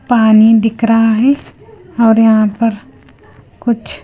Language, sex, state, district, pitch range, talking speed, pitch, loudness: Hindi, female, Punjab, Kapurthala, 220-235 Hz, 120 wpm, 225 Hz, -11 LUFS